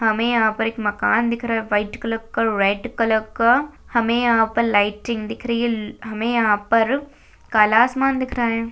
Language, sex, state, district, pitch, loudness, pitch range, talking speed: Hindi, female, Chhattisgarh, Jashpur, 230 Hz, -20 LUFS, 220-235 Hz, 200 wpm